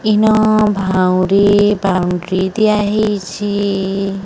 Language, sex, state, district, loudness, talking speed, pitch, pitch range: Odia, female, Odisha, Sambalpur, -14 LUFS, 85 wpm, 200 Hz, 190-210 Hz